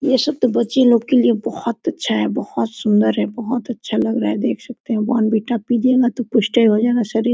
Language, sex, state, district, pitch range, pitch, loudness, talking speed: Hindi, female, Jharkhand, Sahebganj, 225-250 Hz, 235 Hz, -18 LUFS, 245 wpm